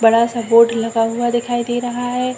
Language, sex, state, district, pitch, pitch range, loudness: Hindi, female, Chhattisgarh, Raigarh, 240 Hz, 230-240 Hz, -17 LUFS